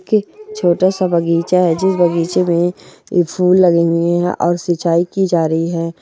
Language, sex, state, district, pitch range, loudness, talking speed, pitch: Hindi, female, Bihar, Purnia, 170-185 Hz, -15 LUFS, 190 wpm, 175 Hz